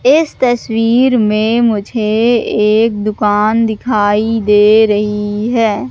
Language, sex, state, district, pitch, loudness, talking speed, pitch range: Hindi, female, Madhya Pradesh, Katni, 220 Hz, -12 LUFS, 100 wpm, 210-235 Hz